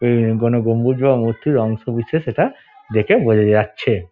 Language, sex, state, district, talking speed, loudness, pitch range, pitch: Bengali, male, West Bengal, Dakshin Dinajpur, 160 wpm, -17 LUFS, 110-125 Hz, 115 Hz